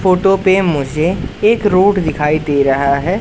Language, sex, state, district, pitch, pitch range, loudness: Hindi, male, Madhya Pradesh, Katni, 180 Hz, 150-195 Hz, -13 LUFS